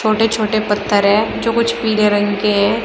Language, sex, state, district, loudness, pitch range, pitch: Hindi, female, Uttar Pradesh, Shamli, -15 LUFS, 205-225 Hz, 215 Hz